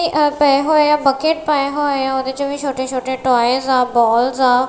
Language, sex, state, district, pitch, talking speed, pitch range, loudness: Punjabi, female, Punjab, Kapurthala, 270 Hz, 230 wpm, 255-295 Hz, -16 LUFS